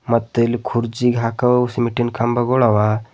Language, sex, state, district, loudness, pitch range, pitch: Kannada, male, Karnataka, Bidar, -18 LUFS, 115-120 Hz, 120 Hz